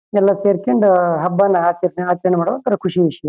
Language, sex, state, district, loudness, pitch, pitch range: Kannada, male, Karnataka, Shimoga, -16 LUFS, 180 Hz, 175-200 Hz